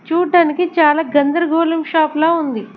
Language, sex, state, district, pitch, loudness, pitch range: Telugu, female, Andhra Pradesh, Sri Satya Sai, 320 Hz, -15 LUFS, 300-335 Hz